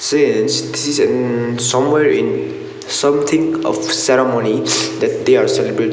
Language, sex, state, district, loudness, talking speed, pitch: English, male, Sikkim, Gangtok, -15 LUFS, 120 wpm, 145 Hz